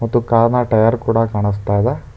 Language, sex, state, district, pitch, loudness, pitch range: Kannada, male, Karnataka, Bangalore, 115 Hz, -16 LUFS, 110-120 Hz